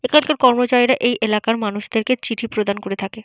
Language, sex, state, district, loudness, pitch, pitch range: Bengali, female, Jharkhand, Jamtara, -18 LUFS, 230 Hz, 210-250 Hz